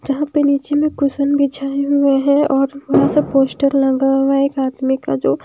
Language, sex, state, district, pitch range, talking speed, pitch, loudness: Hindi, female, Himachal Pradesh, Shimla, 270-280 Hz, 200 wpm, 275 Hz, -16 LUFS